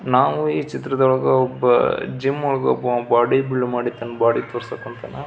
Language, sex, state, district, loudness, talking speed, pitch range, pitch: Kannada, male, Karnataka, Belgaum, -19 LUFS, 160 wpm, 120-130 Hz, 125 Hz